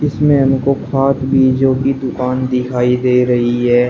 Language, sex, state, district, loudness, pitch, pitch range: Hindi, male, Uttar Pradesh, Shamli, -14 LUFS, 130 Hz, 125-135 Hz